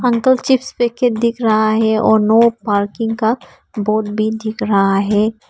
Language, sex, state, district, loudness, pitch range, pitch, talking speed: Hindi, female, Arunachal Pradesh, Papum Pare, -15 LUFS, 215-235 Hz, 220 Hz, 165 wpm